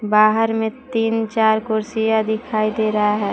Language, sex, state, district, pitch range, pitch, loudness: Hindi, female, Jharkhand, Palamu, 215-225 Hz, 220 Hz, -19 LUFS